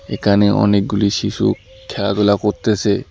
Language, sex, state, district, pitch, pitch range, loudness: Bengali, male, West Bengal, Alipurduar, 100 Hz, 100-105 Hz, -16 LUFS